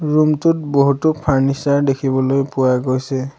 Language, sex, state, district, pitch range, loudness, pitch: Assamese, male, Assam, Sonitpur, 135-150 Hz, -16 LUFS, 140 Hz